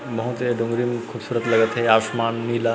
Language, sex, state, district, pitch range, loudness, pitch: Chhattisgarhi, male, Chhattisgarh, Rajnandgaon, 115-120 Hz, -22 LUFS, 115 Hz